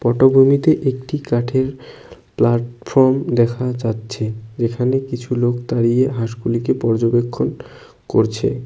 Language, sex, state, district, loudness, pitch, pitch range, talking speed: Bengali, male, West Bengal, Cooch Behar, -18 LUFS, 120 Hz, 115-130 Hz, 90 wpm